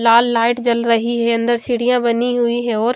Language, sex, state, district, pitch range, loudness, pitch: Hindi, female, Chandigarh, Chandigarh, 230-240 Hz, -16 LUFS, 235 Hz